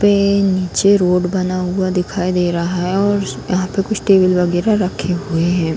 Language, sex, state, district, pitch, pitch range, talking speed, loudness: Hindi, female, Bihar, Darbhanga, 185 Hz, 180-195 Hz, 210 wpm, -16 LUFS